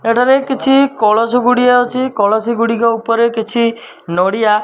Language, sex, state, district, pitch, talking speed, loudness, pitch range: Odia, male, Odisha, Malkangiri, 230 Hz, 140 wpm, -13 LUFS, 220-250 Hz